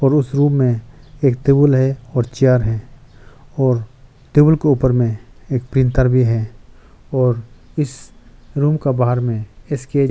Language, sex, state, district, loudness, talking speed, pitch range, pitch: Hindi, male, Arunachal Pradesh, Lower Dibang Valley, -17 LUFS, 155 wpm, 120-140 Hz, 130 Hz